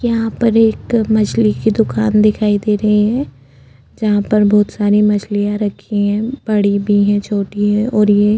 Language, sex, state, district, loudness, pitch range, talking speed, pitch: Hindi, female, Goa, North and South Goa, -14 LUFS, 205-220 Hz, 180 wpm, 210 Hz